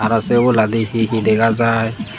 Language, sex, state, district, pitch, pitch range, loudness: Chakma, male, Tripura, Dhalai, 115 Hz, 110-115 Hz, -16 LUFS